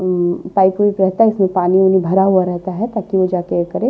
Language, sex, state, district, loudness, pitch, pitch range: Hindi, male, Maharashtra, Washim, -15 LUFS, 190 Hz, 180-195 Hz